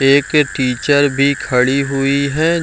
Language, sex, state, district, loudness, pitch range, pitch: Hindi, male, Bihar, Jamui, -14 LUFS, 135-145 Hz, 140 Hz